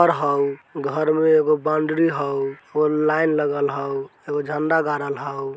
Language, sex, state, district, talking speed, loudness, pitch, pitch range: Bajjika, male, Bihar, Vaishali, 150 wpm, -21 LUFS, 150 Hz, 140-155 Hz